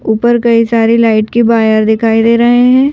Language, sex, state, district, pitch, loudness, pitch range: Hindi, female, Madhya Pradesh, Bhopal, 230 Hz, -9 LUFS, 225-235 Hz